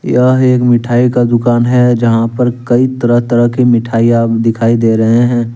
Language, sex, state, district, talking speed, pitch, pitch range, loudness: Hindi, male, Jharkhand, Deoghar, 185 wpm, 120 Hz, 115-125 Hz, -10 LUFS